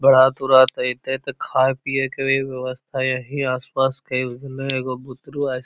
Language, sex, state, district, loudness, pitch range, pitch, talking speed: Magahi, male, Bihar, Lakhisarai, -21 LUFS, 130-135 Hz, 130 Hz, 160 wpm